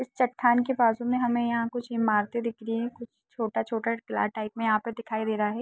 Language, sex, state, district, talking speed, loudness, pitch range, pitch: Hindi, female, Jharkhand, Sahebganj, 225 wpm, -27 LUFS, 225-240 Hz, 230 Hz